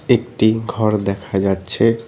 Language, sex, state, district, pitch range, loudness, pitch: Bengali, male, West Bengal, Cooch Behar, 100-115 Hz, -18 LUFS, 110 Hz